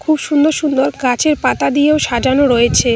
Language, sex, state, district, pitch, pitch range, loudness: Bengali, female, West Bengal, Cooch Behar, 285 Hz, 260-305 Hz, -13 LUFS